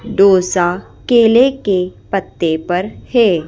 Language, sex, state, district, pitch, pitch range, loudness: Hindi, female, Madhya Pradesh, Bhopal, 195 Hz, 180-225 Hz, -14 LUFS